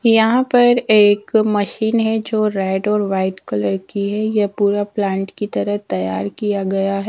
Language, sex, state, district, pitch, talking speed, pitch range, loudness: Hindi, female, Punjab, Fazilka, 205 Hz, 180 wpm, 195-220 Hz, -17 LUFS